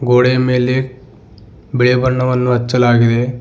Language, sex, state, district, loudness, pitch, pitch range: Kannada, male, Karnataka, Bidar, -14 LUFS, 125 Hz, 120-125 Hz